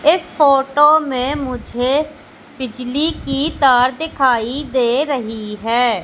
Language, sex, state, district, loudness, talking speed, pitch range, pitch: Hindi, female, Madhya Pradesh, Katni, -16 LUFS, 110 wpm, 245-295 Hz, 270 Hz